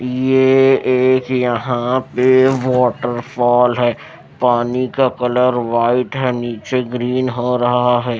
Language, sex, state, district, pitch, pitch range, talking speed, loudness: Hindi, male, Maharashtra, Mumbai Suburban, 125 Hz, 120-130 Hz, 115 wpm, -15 LUFS